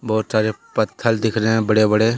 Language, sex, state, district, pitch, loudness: Hindi, male, Jharkhand, Deoghar, 110 Hz, -19 LUFS